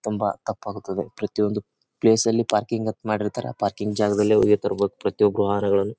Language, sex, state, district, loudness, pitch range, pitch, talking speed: Kannada, male, Karnataka, Bijapur, -23 LUFS, 105-110 Hz, 105 Hz, 150 wpm